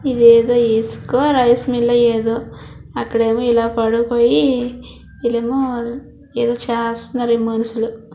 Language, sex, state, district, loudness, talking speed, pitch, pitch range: Telugu, female, Andhra Pradesh, Srikakulam, -16 LUFS, 120 wpm, 235 Hz, 230-245 Hz